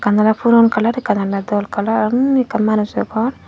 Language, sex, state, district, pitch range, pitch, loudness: Chakma, female, Tripura, Dhalai, 210-235 Hz, 220 Hz, -16 LUFS